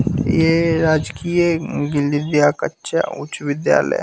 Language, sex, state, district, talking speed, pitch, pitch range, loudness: Hindi, male, Bihar, West Champaran, 90 wpm, 150 Hz, 145-165 Hz, -18 LUFS